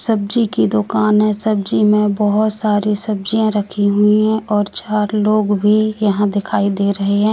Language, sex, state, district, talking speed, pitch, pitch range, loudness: Hindi, female, Madhya Pradesh, Katni, 170 wpm, 210 Hz, 205-215 Hz, -16 LUFS